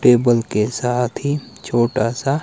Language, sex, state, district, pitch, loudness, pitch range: Hindi, male, Himachal Pradesh, Shimla, 125 Hz, -19 LUFS, 120-135 Hz